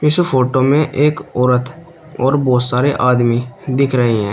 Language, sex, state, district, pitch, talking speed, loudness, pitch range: Hindi, male, Uttar Pradesh, Shamli, 130 Hz, 165 wpm, -15 LUFS, 125-145 Hz